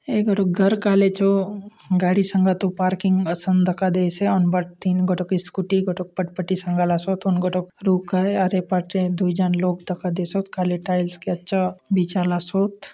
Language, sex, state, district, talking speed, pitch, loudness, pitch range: Halbi, male, Chhattisgarh, Bastar, 165 wpm, 185 Hz, -21 LUFS, 180-195 Hz